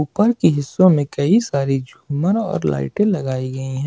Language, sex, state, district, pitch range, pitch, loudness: Hindi, male, Jharkhand, Ranchi, 135-190 Hz, 145 Hz, -18 LUFS